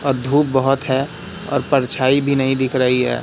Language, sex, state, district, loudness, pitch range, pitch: Hindi, male, Madhya Pradesh, Katni, -17 LUFS, 130-140 Hz, 135 Hz